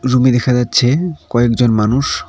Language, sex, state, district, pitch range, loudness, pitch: Bengali, male, West Bengal, Cooch Behar, 120-130 Hz, -14 LUFS, 125 Hz